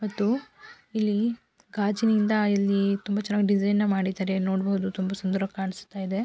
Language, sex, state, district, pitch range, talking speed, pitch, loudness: Kannada, female, Karnataka, Mysore, 195-210 Hz, 135 wpm, 200 Hz, -26 LUFS